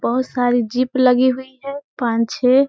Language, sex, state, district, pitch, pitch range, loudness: Hindi, female, Bihar, Gaya, 255 Hz, 245-265 Hz, -18 LUFS